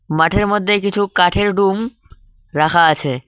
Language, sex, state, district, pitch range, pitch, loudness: Bengali, male, West Bengal, Cooch Behar, 150-205 Hz, 175 Hz, -15 LUFS